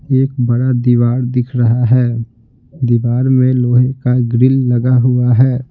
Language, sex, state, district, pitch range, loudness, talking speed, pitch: Hindi, male, Bihar, Patna, 120-130 Hz, -13 LUFS, 145 wpm, 125 Hz